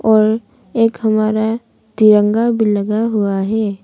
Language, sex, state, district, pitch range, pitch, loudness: Hindi, female, Arunachal Pradesh, Papum Pare, 210-225 Hz, 215 Hz, -15 LUFS